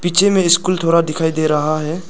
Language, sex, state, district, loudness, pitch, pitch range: Hindi, male, Arunachal Pradesh, Lower Dibang Valley, -15 LUFS, 170 Hz, 155-180 Hz